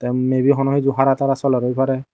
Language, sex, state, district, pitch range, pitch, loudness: Chakma, male, Tripura, Dhalai, 130-135 Hz, 135 Hz, -18 LUFS